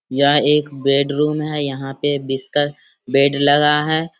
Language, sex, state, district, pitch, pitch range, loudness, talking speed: Hindi, male, Bihar, Samastipur, 145 Hz, 140-150 Hz, -17 LUFS, 170 wpm